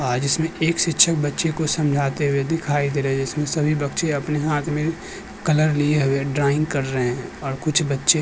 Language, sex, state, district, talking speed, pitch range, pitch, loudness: Hindi, male, Uttar Pradesh, Jyotiba Phule Nagar, 210 wpm, 140-155 Hz, 150 Hz, -21 LUFS